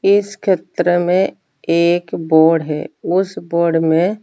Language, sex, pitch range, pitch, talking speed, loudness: Hindi, female, 165-190 Hz, 175 Hz, 115 wpm, -16 LUFS